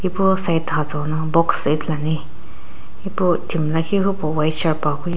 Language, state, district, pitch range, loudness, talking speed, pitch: Sumi, Nagaland, Dimapur, 150-175 Hz, -19 LUFS, 130 wpm, 155 Hz